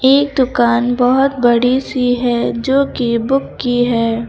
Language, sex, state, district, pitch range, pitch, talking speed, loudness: Hindi, female, Uttar Pradesh, Lucknow, 240-265 Hz, 245 Hz, 155 wpm, -14 LUFS